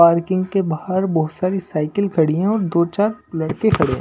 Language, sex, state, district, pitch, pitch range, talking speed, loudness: Hindi, male, Punjab, Pathankot, 185 Hz, 160-195 Hz, 180 wpm, -19 LUFS